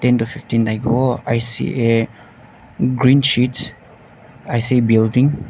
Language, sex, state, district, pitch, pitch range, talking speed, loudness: Nagamese, male, Nagaland, Dimapur, 120 Hz, 115-130 Hz, 120 wpm, -17 LUFS